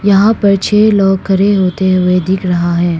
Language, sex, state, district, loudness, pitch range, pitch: Hindi, female, Arunachal Pradesh, Longding, -11 LUFS, 180-200 Hz, 190 Hz